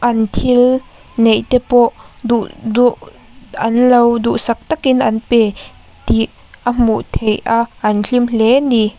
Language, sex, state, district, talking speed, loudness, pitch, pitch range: Mizo, female, Mizoram, Aizawl, 145 wpm, -14 LUFS, 235 Hz, 225-245 Hz